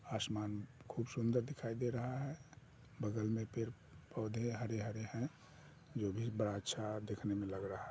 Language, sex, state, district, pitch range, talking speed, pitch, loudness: Hindi, female, Bihar, Muzaffarpur, 105-125 Hz, 165 wpm, 115 Hz, -42 LUFS